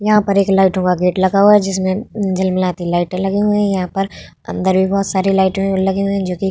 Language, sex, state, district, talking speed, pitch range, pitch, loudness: Hindi, female, Bihar, Vaishali, 260 wpm, 185-195 Hz, 190 Hz, -15 LUFS